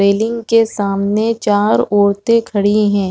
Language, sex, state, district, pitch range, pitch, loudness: Hindi, female, Chhattisgarh, Rajnandgaon, 200-225 Hz, 210 Hz, -14 LUFS